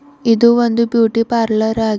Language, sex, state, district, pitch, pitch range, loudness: Kannada, female, Karnataka, Bidar, 230 Hz, 225-235 Hz, -14 LUFS